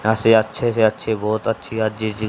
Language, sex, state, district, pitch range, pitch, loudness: Hindi, male, Haryana, Charkhi Dadri, 110-115 Hz, 110 Hz, -19 LUFS